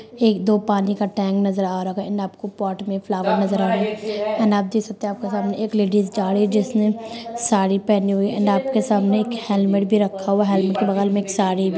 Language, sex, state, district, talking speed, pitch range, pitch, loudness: Hindi, female, Bihar, Samastipur, 260 wpm, 195-215 Hz, 205 Hz, -20 LUFS